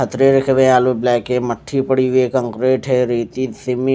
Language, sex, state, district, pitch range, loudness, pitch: Hindi, male, Odisha, Malkangiri, 125-130 Hz, -16 LUFS, 130 Hz